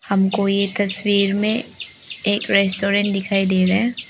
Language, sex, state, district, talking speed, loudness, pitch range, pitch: Hindi, female, Arunachal Pradesh, Lower Dibang Valley, 145 wpm, -18 LUFS, 195-205 Hz, 200 Hz